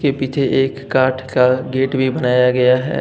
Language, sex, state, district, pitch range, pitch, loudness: Hindi, male, Jharkhand, Deoghar, 125-135 Hz, 130 Hz, -16 LUFS